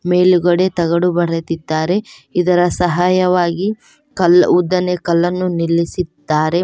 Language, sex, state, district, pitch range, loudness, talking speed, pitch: Kannada, female, Karnataka, Koppal, 170-180 Hz, -15 LUFS, 80 wpm, 180 Hz